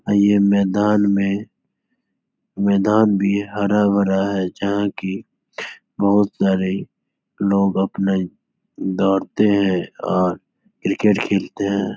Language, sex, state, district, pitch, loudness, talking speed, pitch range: Hindi, male, Uttar Pradesh, Etah, 100 Hz, -19 LUFS, 100 wpm, 95-100 Hz